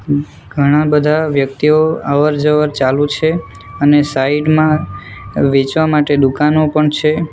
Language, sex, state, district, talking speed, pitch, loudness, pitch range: Gujarati, male, Gujarat, Valsad, 115 wpm, 150 Hz, -13 LUFS, 140-155 Hz